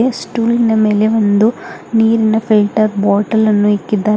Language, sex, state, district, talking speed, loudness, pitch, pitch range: Kannada, female, Karnataka, Bidar, 115 wpm, -13 LUFS, 215 Hz, 210-225 Hz